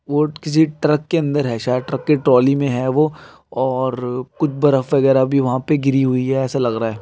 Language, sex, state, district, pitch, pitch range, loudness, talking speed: Hindi, male, Uttar Pradesh, Jalaun, 135 Hz, 130-150 Hz, -17 LUFS, 230 wpm